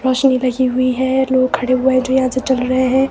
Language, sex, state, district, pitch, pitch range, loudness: Hindi, female, Himachal Pradesh, Shimla, 260 Hz, 255-260 Hz, -15 LUFS